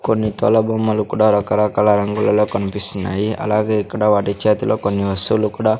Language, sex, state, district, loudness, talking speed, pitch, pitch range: Telugu, male, Andhra Pradesh, Sri Satya Sai, -17 LUFS, 145 wpm, 105 Hz, 100-110 Hz